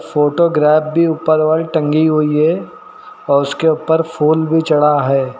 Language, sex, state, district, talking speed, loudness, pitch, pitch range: Hindi, male, Uttar Pradesh, Lucknow, 155 wpm, -14 LUFS, 155 Hz, 150-160 Hz